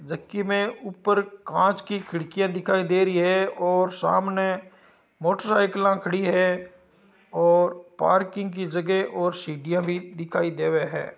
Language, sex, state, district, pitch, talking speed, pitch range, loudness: Marwari, male, Rajasthan, Nagaur, 185 Hz, 135 wpm, 180-195 Hz, -24 LUFS